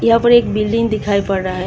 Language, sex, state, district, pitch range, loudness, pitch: Hindi, female, Tripura, West Tripura, 200-230 Hz, -15 LUFS, 210 Hz